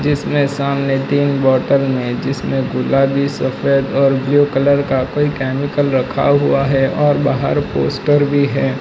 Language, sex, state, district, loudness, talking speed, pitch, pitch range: Hindi, male, Gujarat, Valsad, -15 LUFS, 150 wpm, 140 Hz, 135-145 Hz